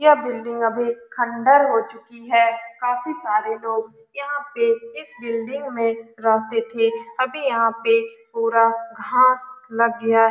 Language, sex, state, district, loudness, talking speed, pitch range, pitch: Hindi, female, Bihar, Saran, -21 LUFS, 145 wpm, 230-280 Hz, 235 Hz